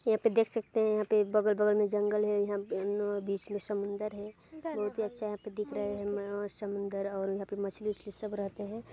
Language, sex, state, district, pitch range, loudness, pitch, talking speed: Hindi, female, Chhattisgarh, Balrampur, 205-215 Hz, -33 LUFS, 205 Hz, 255 wpm